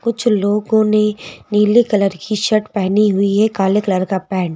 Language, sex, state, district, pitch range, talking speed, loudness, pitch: Hindi, female, Madhya Pradesh, Bhopal, 195-215 Hz, 195 wpm, -15 LUFS, 210 Hz